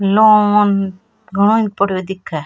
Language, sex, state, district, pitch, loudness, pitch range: Rajasthani, female, Rajasthan, Churu, 200 Hz, -14 LUFS, 190-210 Hz